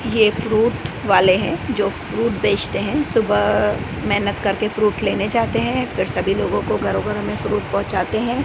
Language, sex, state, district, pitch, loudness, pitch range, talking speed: Hindi, female, Gujarat, Gandhinagar, 215 Hz, -19 LUFS, 205-230 Hz, 175 wpm